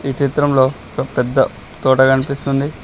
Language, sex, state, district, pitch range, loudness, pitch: Telugu, male, Telangana, Mahabubabad, 130-140 Hz, -16 LUFS, 135 Hz